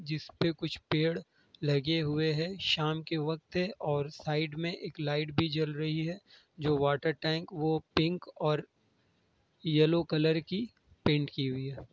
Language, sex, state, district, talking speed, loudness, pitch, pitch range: Hindi, male, Bihar, Kishanganj, 165 wpm, -32 LUFS, 155 Hz, 150-165 Hz